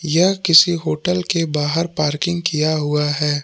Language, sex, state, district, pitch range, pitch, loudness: Hindi, male, Jharkhand, Palamu, 150-175 Hz, 160 Hz, -17 LUFS